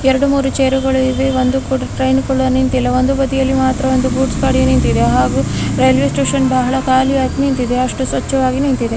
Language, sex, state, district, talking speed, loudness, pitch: Kannada, female, Karnataka, Mysore, 145 wpm, -14 LUFS, 260 Hz